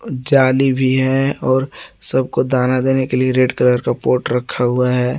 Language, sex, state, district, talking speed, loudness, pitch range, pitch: Hindi, male, Jharkhand, Garhwa, 185 wpm, -16 LUFS, 125-130 Hz, 130 Hz